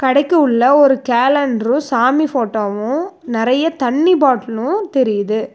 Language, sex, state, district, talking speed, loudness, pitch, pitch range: Tamil, female, Tamil Nadu, Nilgiris, 110 wpm, -15 LUFS, 260 Hz, 235-290 Hz